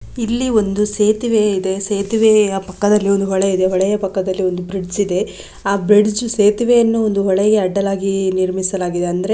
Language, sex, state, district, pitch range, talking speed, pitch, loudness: Kannada, female, Karnataka, Gulbarga, 190-215 Hz, 150 wpm, 200 Hz, -16 LUFS